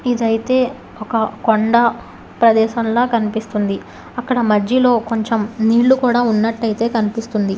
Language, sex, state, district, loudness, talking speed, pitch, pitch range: Telugu, female, Telangana, Hyderabad, -16 LUFS, 95 wpm, 230 Hz, 220-240 Hz